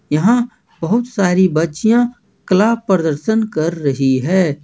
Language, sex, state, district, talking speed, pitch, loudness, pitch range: Hindi, male, Jharkhand, Ranchi, 115 wpm, 190 Hz, -16 LUFS, 155-220 Hz